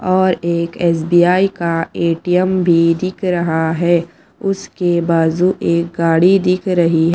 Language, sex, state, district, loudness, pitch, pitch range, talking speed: Hindi, female, Punjab, Pathankot, -15 LUFS, 175 Hz, 165-185 Hz, 135 wpm